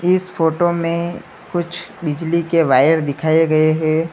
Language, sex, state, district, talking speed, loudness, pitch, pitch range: Hindi, male, Uttar Pradesh, Lalitpur, 145 wpm, -17 LUFS, 165 Hz, 155-170 Hz